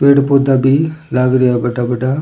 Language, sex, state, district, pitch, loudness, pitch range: Rajasthani, male, Rajasthan, Churu, 130 Hz, -13 LUFS, 125-140 Hz